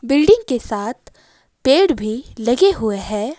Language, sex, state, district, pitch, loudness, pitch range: Hindi, female, Himachal Pradesh, Shimla, 235 Hz, -17 LUFS, 215-285 Hz